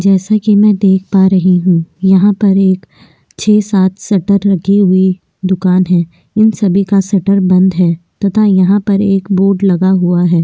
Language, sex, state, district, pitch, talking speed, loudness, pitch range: Hindi, female, Maharashtra, Aurangabad, 190 Hz, 180 wpm, -11 LUFS, 185-200 Hz